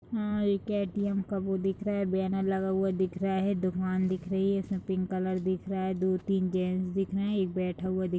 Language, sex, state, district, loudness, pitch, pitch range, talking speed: Hindi, female, Uttar Pradesh, Jalaun, -30 LUFS, 190 Hz, 185-195 Hz, 255 wpm